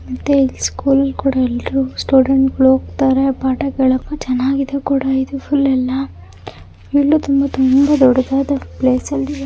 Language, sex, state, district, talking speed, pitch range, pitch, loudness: Kannada, female, Karnataka, Raichur, 125 wpm, 260-275 Hz, 270 Hz, -15 LUFS